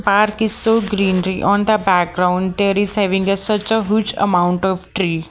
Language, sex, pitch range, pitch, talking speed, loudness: English, female, 185-210 Hz, 200 Hz, 190 wpm, -16 LUFS